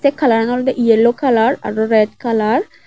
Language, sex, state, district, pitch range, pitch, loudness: Chakma, female, Tripura, West Tripura, 225-260 Hz, 235 Hz, -15 LUFS